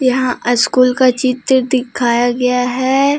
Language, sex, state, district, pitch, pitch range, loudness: Hindi, female, Jharkhand, Deoghar, 250 Hz, 245-260 Hz, -14 LUFS